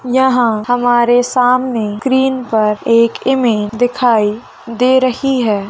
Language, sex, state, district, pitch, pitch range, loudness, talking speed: Hindi, female, Rajasthan, Nagaur, 245 Hz, 225-255 Hz, -13 LUFS, 115 wpm